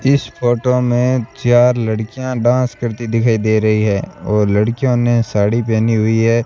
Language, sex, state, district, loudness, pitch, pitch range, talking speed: Hindi, male, Rajasthan, Bikaner, -15 LUFS, 115 Hz, 110-125 Hz, 165 wpm